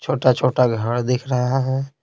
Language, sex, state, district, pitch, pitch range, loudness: Hindi, male, Bihar, Patna, 125 Hz, 125-130 Hz, -20 LUFS